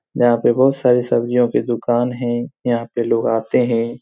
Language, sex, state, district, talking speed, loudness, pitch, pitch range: Hindi, male, Bihar, Supaul, 195 wpm, -17 LUFS, 120 Hz, 115-125 Hz